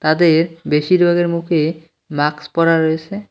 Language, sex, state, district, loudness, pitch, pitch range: Bengali, male, West Bengal, Cooch Behar, -16 LUFS, 165 Hz, 155-170 Hz